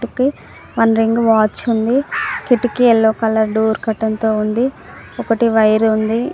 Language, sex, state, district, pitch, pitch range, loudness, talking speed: Telugu, female, Telangana, Karimnagar, 225 Hz, 220-240 Hz, -15 LUFS, 130 wpm